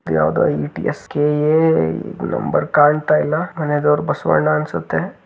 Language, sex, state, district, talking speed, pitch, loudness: Kannada, male, Karnataka, Dharwad, 100 wpm, 150 Hz, -17 LUFS